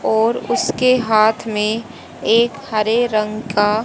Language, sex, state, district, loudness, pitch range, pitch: Hindi, female, Haryana, Charkhi Dadri, -17 LUFS, 215-235 Hz, 220 Hz